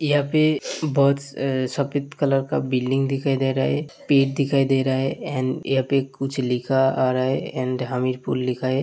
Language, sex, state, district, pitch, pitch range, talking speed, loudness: Hindi, male, Uttar Pradesh, Hamirpur, 135 Hz, 130-140 Hz, 195 wpm, -22 LUFS